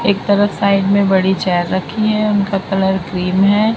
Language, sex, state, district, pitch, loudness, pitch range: Hindi, male, Maharashtra, Mumbai Suburban, 195 Hz, -15 LUFS, 190-205 Hz